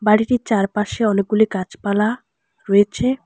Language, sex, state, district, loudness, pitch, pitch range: Bengali, female, West Bengal, Alipurduar, -18 LUFS, 210 Hz, 200-225 Hz